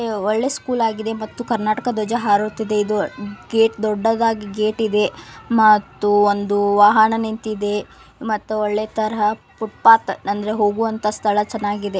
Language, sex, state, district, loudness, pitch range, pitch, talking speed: Kannada, female, Karnataka, Belgaum, -19 LUFS, 210-225 Hz, 215 Hz, 125 wpm